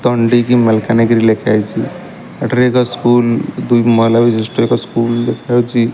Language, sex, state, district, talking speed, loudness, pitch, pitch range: Odia, male, Odisha, Malkangiri, 120 wpm, -13 LUFS, 115 Hz, 115-120 Hz